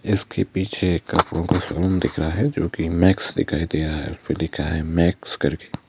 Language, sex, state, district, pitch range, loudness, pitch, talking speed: Hindi, male, Madhya Pradesh, Bhopal, 80-95 Hz, -22 LUFS, 85 Hz, 185 wpm